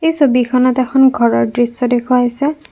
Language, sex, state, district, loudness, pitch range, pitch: Assamese, female, Assam, Kamrup Metropolitan, -13 LUFS, 245-270 Hz, 250 Hz